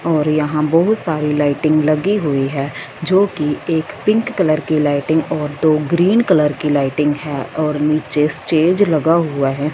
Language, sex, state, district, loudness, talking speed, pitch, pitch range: Hindi, female, Punjab, Fazilka, -16 LUFS, 175 wpm, 155 Hz, 150-165 Hz